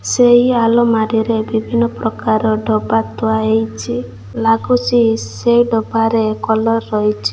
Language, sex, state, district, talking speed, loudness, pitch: Odia, female, Odisha, Malkangiri, 100 wpm, -15 LUFS, 215 Hz